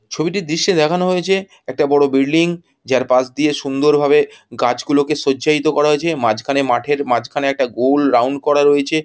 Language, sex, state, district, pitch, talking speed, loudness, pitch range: Bengali, male, West Bengal, Jhargram, 145 Hz, 180 wpm, -16 LUFS, 135-155 Hz